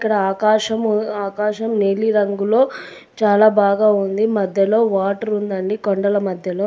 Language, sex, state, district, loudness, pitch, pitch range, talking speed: Telugu, female, Telangana, Hyderabad, -17 LUFS, 210 Hz, 200-215 Hz, 115 wpm